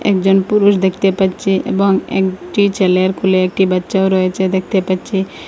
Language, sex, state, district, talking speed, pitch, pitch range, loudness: Bengali, female, Assam, Hailakandi, 140 wpm, 190 Hz, 185-195 Hz, -14 LUFS